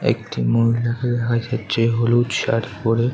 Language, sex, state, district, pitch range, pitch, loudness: Bengali, male, West Bengal, Kolkata, 115-120 Hz, 115 Hz, -20 LUFS